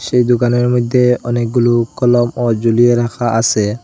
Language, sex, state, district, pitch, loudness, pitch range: Bengali, male, Assam, Hailakandi, 120 Hz, -14 LUFS, 115-120 Hz